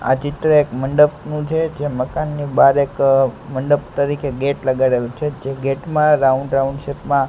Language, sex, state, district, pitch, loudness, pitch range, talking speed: Gujarati, male, Gujarat, Gandhinagar, 140 Hz, -18 LUFS, 135-150 Hz, 180 wpm